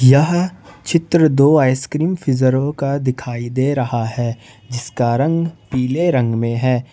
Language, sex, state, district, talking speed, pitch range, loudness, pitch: Hindi, male, Jharkhand, Ranchi, 140 wpm, 120-150 Hz, -17 LUFS, 130 Hz